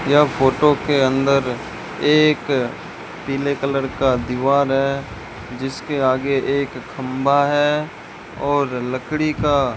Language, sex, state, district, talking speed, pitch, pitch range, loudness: Hindi, male, Rajasthan, Bikaner, 115 wpm, 135 Hz, 130-145 Hz, -19 LUFS